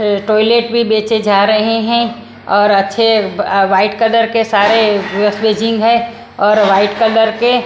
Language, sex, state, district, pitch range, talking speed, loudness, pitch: Hindi, female, Maharashtra, Washim, 205-225 Hz, 140 wpm, -12 LUFS, 220 Hz